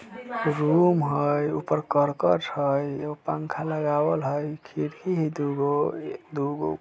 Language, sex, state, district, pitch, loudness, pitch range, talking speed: Bajjika, male, Bihar, Vaishali, 145 Hz, -26 LUFS, 140-155 Hz, 115 wpm